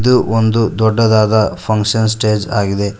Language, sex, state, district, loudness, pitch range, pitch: Kannada, male, Karnataka, Koppal, -14 LUFS, 105-115 Hz, 110 Hz